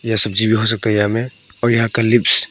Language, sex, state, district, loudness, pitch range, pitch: Hindi, male, Arunachal Pradesh, Papum Pare, -15 LUFS, 105-115 Hz, 110 Hz